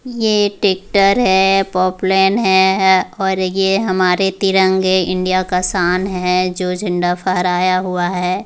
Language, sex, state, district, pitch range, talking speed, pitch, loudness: Hindi, female, Bihar, Muzaffarpur, 185-195 Hz, 135 wpm, 185 Hz, -15 LUFS